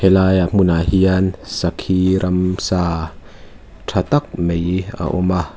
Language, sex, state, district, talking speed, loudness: Mizo, female, Mizoram, Aizawl, 120 wpm, -17 LUFS